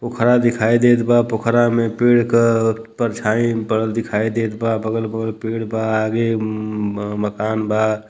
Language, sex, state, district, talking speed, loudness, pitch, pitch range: Bhojpuri, male, Uttar Pradesh, Deoria, 165 wpm, -18 LUFS, 115 Hz, 110-115 Hz